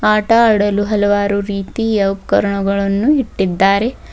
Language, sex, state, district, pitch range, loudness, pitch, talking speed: Kannada, female, Karnataka, Bidar, 200-215 Hz, -15 LUFS, 205 Hz, 85 wpm